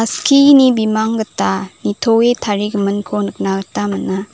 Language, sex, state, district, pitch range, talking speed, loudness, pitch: Garo, female, Meghalaya, South Garo Hills, 200-230 Hz, 95 wpm, -15 LUFS, 210 Hz